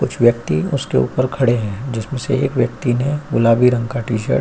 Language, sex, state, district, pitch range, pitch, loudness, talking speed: Hindi, male, Uttar Pradesh, Jyotiba Phule Nagar, 115-130 Hz, 120 Hz, -18 LUFS, 220 wpm